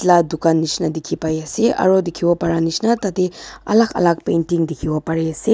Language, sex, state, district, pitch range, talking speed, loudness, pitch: Nagamese, female, Nagaland, Dimapur, 160-185 Hz, 185 wpm, -18 LUFS, 170 Hz